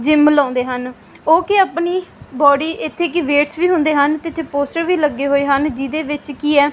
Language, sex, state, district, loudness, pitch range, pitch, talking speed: Punjabi, female, Punjab, Fazilka, -16 LUFS, 285-330 Hz, 295 Hz, 225 wpm